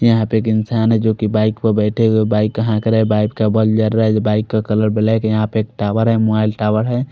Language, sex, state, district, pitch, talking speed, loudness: Hindi, male, Odisha, Khordha, 110 Hz, 235 wpm, -16 LUFS